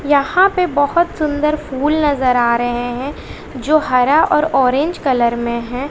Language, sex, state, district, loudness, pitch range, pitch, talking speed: Hindi, female, Bihar, West Champaran, -15 LUFS, 250-305 Hz, 280 Hz, 160 wpm